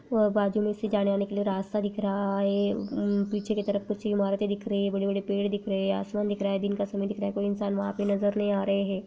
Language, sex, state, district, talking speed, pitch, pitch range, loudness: Hindi, female, Rajasthan, Nagaur, 285 wpm, 200 Hz, 200-205 Hz, -28 LUFS